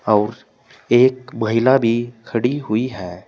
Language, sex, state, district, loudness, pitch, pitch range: Hindi, male, Uttar Pradesh, Saharanpur, -18 LUFS, 115 Hz, 105-125 Hz